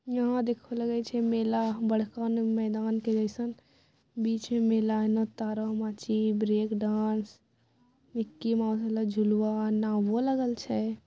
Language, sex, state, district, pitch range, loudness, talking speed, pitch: Maithili, female, Bihar, Bhagalpur, 215-230 Hz, -29 LUFS, 140 wpm, 220 Hz